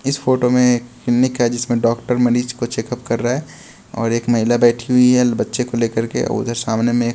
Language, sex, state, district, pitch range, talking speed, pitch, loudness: Hindi, male, Bihar, West Champaran, 120-125 Hz, 245 wpm, 120 Hz, -17 LUFS